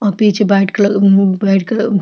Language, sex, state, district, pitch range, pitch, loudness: Hindi, female, Chhattisgarh, Jashpur, 195-210 Hz, 200 Hz, -12 LUFS